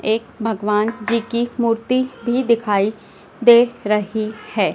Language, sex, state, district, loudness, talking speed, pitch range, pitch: Hindi, female, Madhya Pradesh, Dhar, -19 LUFS, 125 wpm, 215-235 Hz, 230 Hz